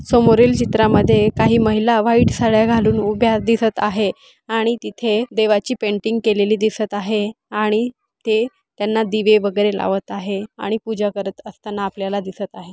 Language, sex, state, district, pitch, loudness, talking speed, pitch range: Marathi, female, Maharashtra, Aurangabad, 215 Hz, -18 LUFS, 145 wpm, 205-230 Hz